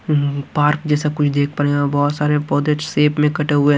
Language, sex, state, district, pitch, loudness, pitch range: Hindi, male, Haryana, Rohtak, 150 Hz, -18 LUFS, 145-150 Hz